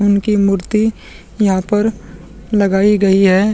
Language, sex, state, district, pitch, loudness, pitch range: Hindi, male, Bihar, Vaishali, 200 Hz, -14 LUFS, 190-210 Hz